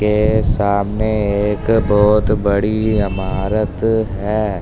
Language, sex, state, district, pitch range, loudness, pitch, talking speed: Hindi, male, Delhi, New Delhi, 100-110 Hz, -16 LUFS, 105 Hz, 90 wpm